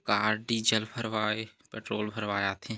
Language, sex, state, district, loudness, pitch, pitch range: Hindi, male, Chhattisgarh, Korba, -30 LUFS, 110 Hz, 105-110 Hz